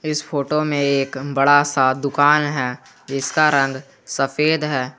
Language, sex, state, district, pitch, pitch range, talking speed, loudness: Hindi, male, Jharkhand, Garhwa, 140 Hz, 135-150 Hz, 145 wpm, -18 LUFS